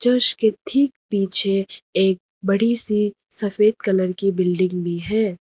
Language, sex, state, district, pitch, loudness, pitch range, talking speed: Hindi, female, Arunachal Pradesh, Lower Dibang Valley, 200 Hz, -20 LUFS, 190-220 Hz, 135 wpm